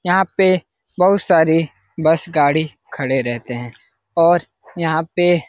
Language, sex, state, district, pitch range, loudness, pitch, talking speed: Hindi, male, Bihar, Lakhisarai, 150-175 Hz, -17 LUFS, 165 Hz, 140 wpm